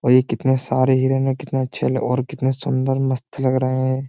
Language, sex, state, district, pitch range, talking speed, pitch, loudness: Hindi, male, Uttar Pradesh, Jyotiba Phule Nagar, 130-135 Hz, 220 wpm, 130 Hz, -20 LUFS